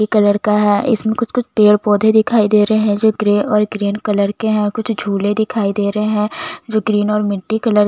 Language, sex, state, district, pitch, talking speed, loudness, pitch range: Hindi, female, Chhattisgarh, Jashpur, 210 Hz, 205 wpm, -15 LUFS, 205-220 Hz